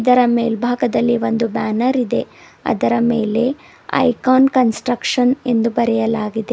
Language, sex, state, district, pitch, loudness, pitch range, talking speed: Kannada, female, Karnataka, Bidar, 235 Hz, -17 LUFS, 230-250 Hz, 100 wpm